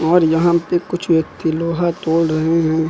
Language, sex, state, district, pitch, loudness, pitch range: Hindi, male, Uttar Pradesh, Lucknow, 165 Hz, -17 LUFS, 160-170 Hz